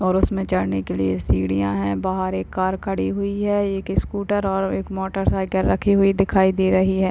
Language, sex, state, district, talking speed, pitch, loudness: Hindi, female, Uttar Pradesh, Jyotiba Phule Nagar, 200 wpm, 190 Hz, -21 LUFS